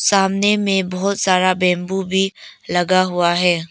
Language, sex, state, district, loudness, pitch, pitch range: Hindi, female, Arunachal Pradesh, Papum Pare, -17 LUFS, 185 Hz, 180-195 Hz